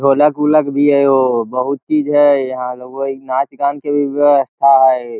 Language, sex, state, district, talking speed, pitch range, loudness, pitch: Magahi, male, Bihar, Lakhisarai, 210 wpm, 130-145 Hz, -14 LUFS, 140 Hz